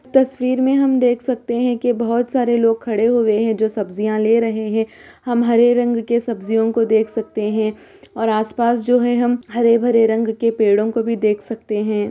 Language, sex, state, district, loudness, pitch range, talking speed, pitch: Hindi, female, Bihar, Gopalganj, -17 LUFS, 220-240 Hz, 205 wpm, 230 Hz